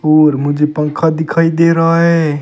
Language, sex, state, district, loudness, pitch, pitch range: Hindi, male, Rajasthan, Bikaner, -12 LUFS, 155 Hz, 150-165 Hz